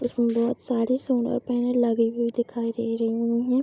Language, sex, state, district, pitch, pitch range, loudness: Hindi, female, Bihar, Araria, 235 Hz, 230-245 Hz, -25 LUFS